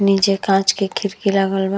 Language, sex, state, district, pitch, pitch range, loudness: Bhojpuri, female, Uttar Pradesh, Gorakhpur, 195 Hz, 195-200 Hz, -17 LUFS